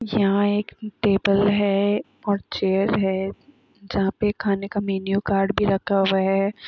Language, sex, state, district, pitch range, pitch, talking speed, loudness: Hindi, female, Chhattisgarh, Raigarh, 195-205 Hz, 200 Hz, 135 wpm, -22 LUFS